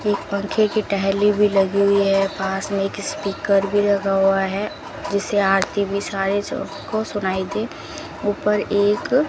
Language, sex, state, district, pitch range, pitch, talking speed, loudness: Hindi, female, Rajasthan, Bikaner, 195-205 Hz, 200 Hz, 170 wpm, -20 LUFS